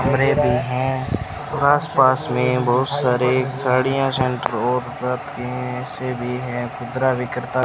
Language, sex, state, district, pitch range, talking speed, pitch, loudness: Hindi, male, Rajasthan, Bikaner, 125-130 Hz, 140 wpm, 125 Hz, -20 LUFS